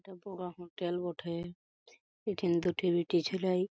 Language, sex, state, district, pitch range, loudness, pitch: Bengali, male, West Bengal, Paschim Medinipur, 175-185 Hz, -34 LUFS, 175 Hz